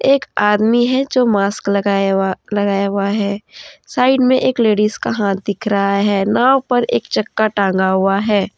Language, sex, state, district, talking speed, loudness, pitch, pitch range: Hindi, female, Jharkhand, Deoghar, 180 wpm, -16 LUFS, 205 Hz, 200-240 Hz